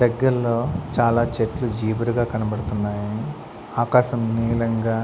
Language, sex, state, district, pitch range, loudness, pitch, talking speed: Telugu, male, Andhra Pradesh, Sri Satya Sai, 110-120 Hz, -22 LUFS, 115 Hz, 85 wpm